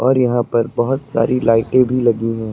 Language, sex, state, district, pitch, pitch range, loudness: Hindi, male, Uttar Pradesh, Lucknow, 120 Hz, 115-125 Hz, -16 LUFS